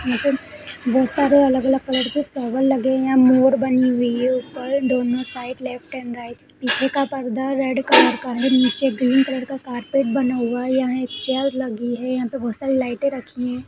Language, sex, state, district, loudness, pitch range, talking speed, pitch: Hindi, female, Bihar, Begusarai, -20 LUFS, 250-270 Hz, 230 wpm, 260 Hz